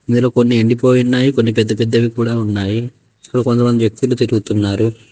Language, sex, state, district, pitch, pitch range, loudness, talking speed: Telugu, male, Telangana, Hyderabad, 115 Hz, 110-125 Hz, -15 LUFS, 175 wpm